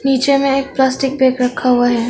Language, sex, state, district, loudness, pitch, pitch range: Hindi, female, Arunachal Pradesh, Longding, -14 LUFS, 265 Hz, 250-275 Hz